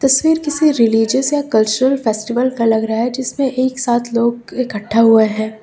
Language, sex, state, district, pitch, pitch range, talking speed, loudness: Hindi, female, Uttar Pradesh, Lucknow, 240 Hz, 225-265 Hz, 180 wpm, -15 LUFS